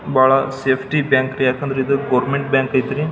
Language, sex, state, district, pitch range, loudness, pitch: Kannada, male, Karnataka, Belgaum, 130-140 Hz, -17 LUFS, 135 Hz